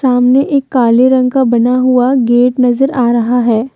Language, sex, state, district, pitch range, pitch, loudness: Hindi, female, Jharkhand, Deoghar, 240-260 Hz, 250 Hz, -11 LUFS